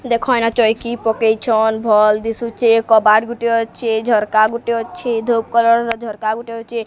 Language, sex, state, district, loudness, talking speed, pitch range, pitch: Odia, female, Odisha, Sambalpur, -16 LUFS, 150 wpm, 220-235 Hz, 230 Hz